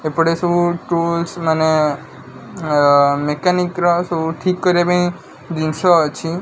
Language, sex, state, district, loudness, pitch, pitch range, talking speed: Odia, male, Odisha, Khordha, -16 LUFS, 170 Hz, 155-175 Hz, 120 wpm